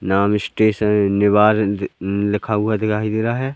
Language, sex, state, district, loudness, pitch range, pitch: Hindi, male, Madhya Pradesh, Katni, -18 LUFS, 100-110 Hz, 105 Hz